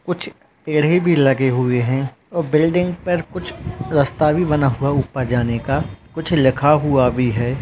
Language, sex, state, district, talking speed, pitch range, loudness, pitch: Hindi, male, Rajasthan, Churu, 175 wpm, 125-160 Hz, -18 LUFS, 140 Hz